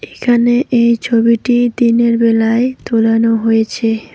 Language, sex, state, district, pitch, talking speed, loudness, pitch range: Bengali, female, West Bengal, Alipurduar, 235 Hz, 100 wpm, -13 LUFS, 225-240 Hz